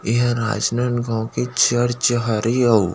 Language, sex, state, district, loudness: Chhattisgarhi, male, Chhattisgarh, Rajnandgaon, -19 LUFS